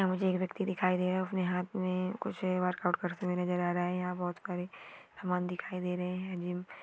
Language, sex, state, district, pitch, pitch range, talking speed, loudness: Hindi, female, Uttar Pradesh, Deoria, 180 Hz, 180-185 Hz, 255 wpm, -34 LUFS